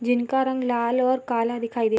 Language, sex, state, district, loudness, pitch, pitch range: Hindi, female, Jharkhand, Sahebganj, -23 LUFS, 240 Hz, 235-255 Hz